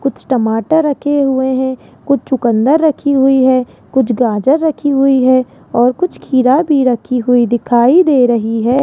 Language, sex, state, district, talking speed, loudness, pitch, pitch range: Hindi, female, Rajasthan, Jaipur, 170 wpm, -12 LUFS, 260 Hz, 245-280 Hz